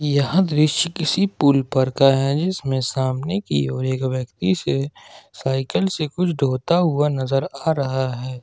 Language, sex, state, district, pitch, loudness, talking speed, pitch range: Hindi, male, Jharkhand, Ranchi, 140 Hz, -20 LUFS, 165 wpm, 130-160 Hz